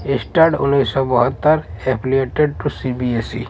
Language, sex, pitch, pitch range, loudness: Bhojpuri, male, 130 Hz, 120-140 Hz, -17 LUFS